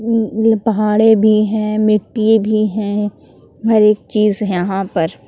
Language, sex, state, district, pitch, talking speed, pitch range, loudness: Hindi, female, Jharkhand, Palamu, 215 Hz, 145 wpm, 210-220 Hz, -15 LUFS